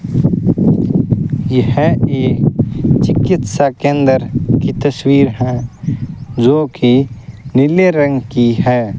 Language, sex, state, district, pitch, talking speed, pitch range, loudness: Hindi, male, Rajasthan, Bikaner, 135 Hz, 85 wpm, 125-145 Hz, -13 LUFS